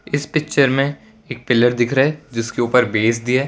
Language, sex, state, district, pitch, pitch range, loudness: Hindi, male, Gujarat, Valsad, 130 Hz, 120-145 Hz, -17 LUFS